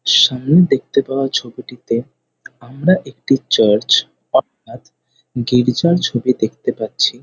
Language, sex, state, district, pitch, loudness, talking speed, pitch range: Bengali, male, West Bengal, North 24 Parganas, 125 Hz, -16 LUFS, 100 wpm, 120-135 Hz